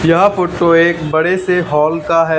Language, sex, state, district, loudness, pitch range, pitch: Hindi, male, Haryana, Charkhi Dadri, -13 LUFS, 160-180 Hz, 165 Hz